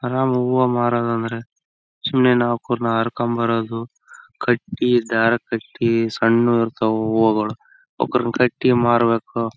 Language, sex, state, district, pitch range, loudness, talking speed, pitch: Kannada, male, Karnataka, Raichur, 115-125 Hz, -19 LUFS, 50 wpm, 120 Hz